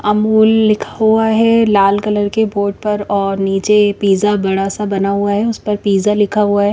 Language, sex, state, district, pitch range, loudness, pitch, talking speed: Hindi, female, Chandigarh, Chandigarh, 200-215 Hz, -14 LUFS, 205 Hz, 205 wpm